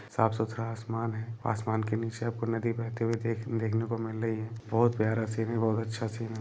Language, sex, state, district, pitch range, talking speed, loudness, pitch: Hindi, male, Jharkhand, Jamtara, 110-115 Hz, 215 wpm, -31 LUFS, 115 Hz